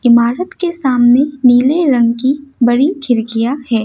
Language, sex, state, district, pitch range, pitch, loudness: Hindi, female, Assam, Kamrup Metropolitan, 240-280 Hz, 255 Hz, -13 LUFS